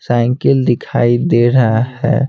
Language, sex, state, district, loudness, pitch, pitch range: Hindi, male, Bihar, Patna, -13 LUFS, 120 Hz, 115-130 Hz